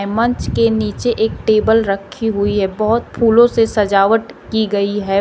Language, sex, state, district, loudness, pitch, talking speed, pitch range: Hindi, female, Uttar Pradesh, Shamli, -15 LUFS, 220 Hz, 175 wpm, 200-225 Hz